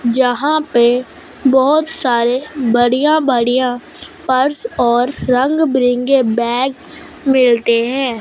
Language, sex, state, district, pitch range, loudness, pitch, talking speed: Hindi, female, Punjab, Fazilka, 245-295 Hz, -14 LUFS, 255 Hz, 95 wpm